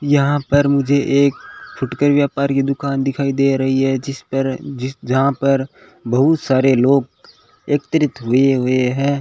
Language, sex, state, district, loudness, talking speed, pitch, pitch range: Hindi, male, Rajasthan, Bikaner, -17 LUFS, 150 wpm, 135 Hz, 130-140 Hz